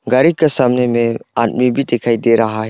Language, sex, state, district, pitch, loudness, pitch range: Hindi, male, Arunachal Pradesh, Longding, 120 Hz, -14 LUFS, 115-125 Hz